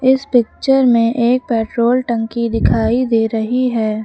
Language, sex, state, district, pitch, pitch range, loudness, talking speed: Hindi, female, Uttar Pradesh, Lucknow, 235 Hz, 225-250 Hz, -15 LUFS, 150 wpm